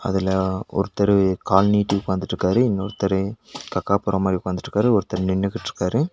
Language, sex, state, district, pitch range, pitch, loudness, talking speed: Tamil, male, Tamil Nadu, Nilgiris, 95-100 Hz, 95 Hz, -21 LUFS, 105 wpm